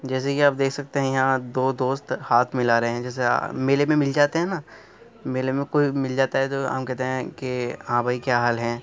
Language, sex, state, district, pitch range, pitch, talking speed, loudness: Hindi, male, Uttar Pradesh, Muzaffarnagar, 125-140 Hz, 130 Hz, 245 wpm, -23 LUFS